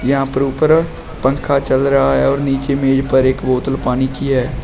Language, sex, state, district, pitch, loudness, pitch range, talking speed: Hindi, male, Uttar Pradesh, Shamli, 135 Hz, -15 LUFS, 130-140 Hz, 205 wpm